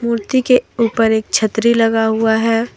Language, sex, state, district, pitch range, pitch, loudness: Hindi, female, Jharkhand, Deoghar, 220-235 Hz, 225 Hz, -15 LUFS